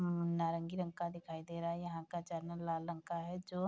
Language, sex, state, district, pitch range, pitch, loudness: Hindi, female, Bihar, Bhagalpur, 165-175 Hz, 170 Hz, -41 LUFS